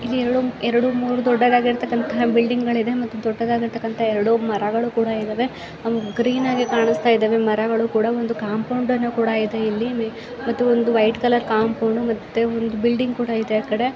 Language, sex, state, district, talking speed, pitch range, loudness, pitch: Kannada, female, Karnataka, Mysore, 170 wpm, 225-245 Hz, -20 LUFS, 230 Hz